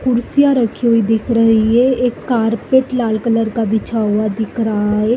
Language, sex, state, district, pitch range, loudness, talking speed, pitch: Hindi, female, Uttar Pradesh, Jalaun, 220-245 Hz, -15 LUFS, 185 wpm, 230 Hz